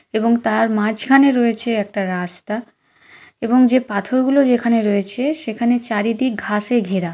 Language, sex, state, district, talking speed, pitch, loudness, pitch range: Bengali, female, West Bengal, Kolkata, 125 wpm, 230 Hz, -17 LUFS, 210-250 Hz